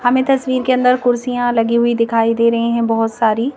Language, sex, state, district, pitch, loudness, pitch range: Hindi, female, Madhya Pradesh, Bhopal, 235 Hz, -15 LUFS, 230-250 Hz